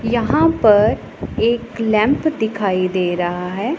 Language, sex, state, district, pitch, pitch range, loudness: Hindi, female, Punjab, Pathankot, 220 Hz, 190-240 Hz, -17 LUFS